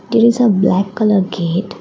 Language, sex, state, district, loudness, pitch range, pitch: English, female, Assam, Kamrup Metropolitan, -14 LUFS, 190-225 Hz, 200 Hz